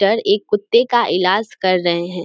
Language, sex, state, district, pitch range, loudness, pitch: Hindi, female, Bihar, Samastipur, 185-220 Hz, -16 LUFS, 200 Hz